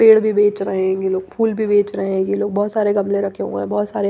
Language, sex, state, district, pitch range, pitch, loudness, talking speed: Hindi, female, Maharashtra, Mumbai Suburban, 190-205 Hz, 200 Hz, -18 LUFS, 320 wpm